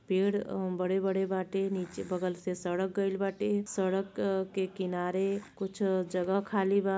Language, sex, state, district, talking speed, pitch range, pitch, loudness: Bhojpuri, female, Uttar Pradesh, Deoria, 155 wpm, 185-195 Hz, 190 Hz, -32 LUFS